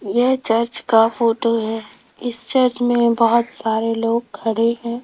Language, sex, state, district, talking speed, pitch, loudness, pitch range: Hindi, female, Rajasthan, Jaipur, 155 wpm, 230 Hz, -18 LUFS, 225-240 Hz